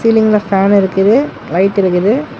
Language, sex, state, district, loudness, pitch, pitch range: Tamil, male, Tamil Nadu, Namakkal, -12 LUFS, 200 Hz, 195-220 Hz